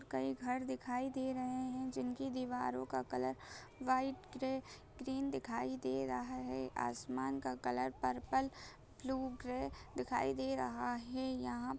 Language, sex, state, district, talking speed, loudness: Hindi, female, Bihar, Bhagalpur, 150 wpm, -41 LUFS